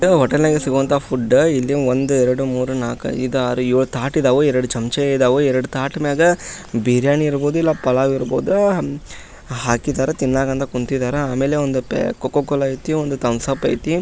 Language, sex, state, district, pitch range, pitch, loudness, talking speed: Kannada, male, Karnataka, Dharwad, 130-145 Hz, 135 Hz, -18 LUFS, 165 wpm